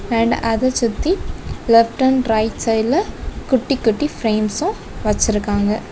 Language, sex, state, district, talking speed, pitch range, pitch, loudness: Tamil, female, Tamil Nadu, Kanyakumari, 110 wpm, 220-260 Hz, 230 Hz, -18 LUFS